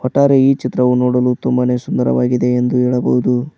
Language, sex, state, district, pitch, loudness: Kannada, male, Karnataka, Koppal, 125 Hz, -15 LUFS